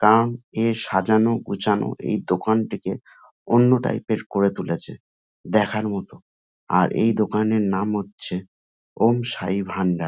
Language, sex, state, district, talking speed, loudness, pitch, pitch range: Bengali, male, West Bengal, North 24 Parganas, 130 wpm, -22 LUFS, 105 Hz, 95-110 Hz